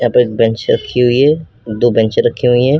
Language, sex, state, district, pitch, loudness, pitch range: Hindi, male, Uttar Pradesh, Lucknow, 120 Hz, -13 LUFS, 115-125 Hz